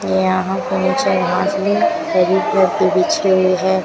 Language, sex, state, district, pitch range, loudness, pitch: Hindi, female, Rajasthan, Bikaner, 185-200 Hz, -16 LUFS, 190 Hz